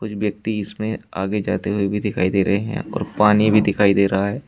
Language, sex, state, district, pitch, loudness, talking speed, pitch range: Hindi, male, Uttar Pradesh, Shamli, 105 Hz, -20 LUFS, 230 wpm, 100-105 Hz